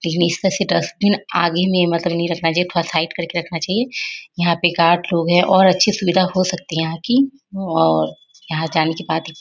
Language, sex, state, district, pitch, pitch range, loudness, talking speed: Hindi, female, Bihar, Bhagalpur, 175 Hz, 165-185 Hz, -18 LUFS, 235 wpm